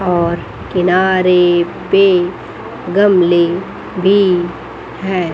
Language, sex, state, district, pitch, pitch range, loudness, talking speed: Hindi, female, Chandigarh, Chandigarh, 180 Hz, 175-190 Hz, -13 LUFS, 65 wpm